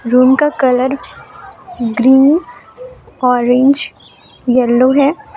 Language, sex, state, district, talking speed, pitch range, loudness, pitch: Hindi, female, Jharkhand, Palamu, 80 wpm, 250-285 Hz, -12 LUFS, 260 Hz